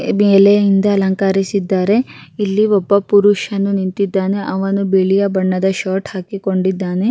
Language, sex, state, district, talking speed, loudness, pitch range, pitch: Kannada, female, Karnataka, Raichur, 95 wpm, -15 LUFS, 190-200 Hz, 195 Hz